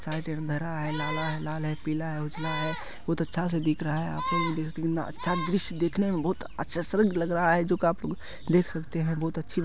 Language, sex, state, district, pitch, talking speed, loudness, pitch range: Hindi, male, Bihar, Supaul, 165 Hz, 160 wpm, -29 LUFS, 155-170 Hz